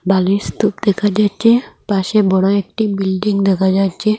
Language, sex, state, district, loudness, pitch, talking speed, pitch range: Bengali, female, Assam, Hailakandi, -15 LUFS, 200 Hz, 145 wpm, 190-210 Hz